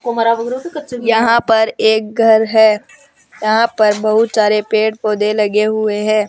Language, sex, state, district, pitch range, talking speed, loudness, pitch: Hindi, female, Rajasthan, Jaipur, 215-230 Hz, 135 wpm, -14 LUFS, 220 Hz